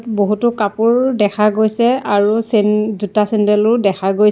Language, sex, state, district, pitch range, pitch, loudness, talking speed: Assamese, female, Assam, Sonitpur, 205-225 Hz, 210 Hz, -15 LUFS, 140 wpm